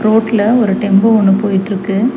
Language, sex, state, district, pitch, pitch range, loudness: Tamil, female, Tamil Nadu, Chennai, 210 Hz, 200-220 Hz, -12 LUFS